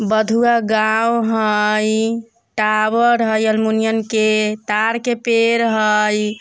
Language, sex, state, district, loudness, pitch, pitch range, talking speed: Bajjika, male, Bihar, Vaishali, -16 LUFS, 220 Hz, 215-230 Hz, 105 wpm